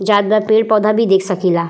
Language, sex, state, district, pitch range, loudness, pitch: Bhojpuri, female, Uttar Pradesh, Gorakhpur, 190-215 Hz, -14 LUFS, 210 Hz